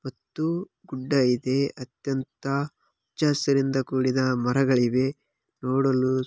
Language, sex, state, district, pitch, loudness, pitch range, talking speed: Kannada, male, Karnataka, Bellary, 135 Hz, -25 LUFS, 130-140 Hz, 85 wpm